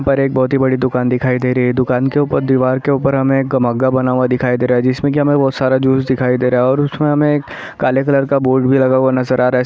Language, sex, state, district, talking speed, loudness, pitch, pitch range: Hindi, male, Chhattisgarh, Sarguja, 300 wpm, -14 LUFS, 130 Hz, 125-135 Hz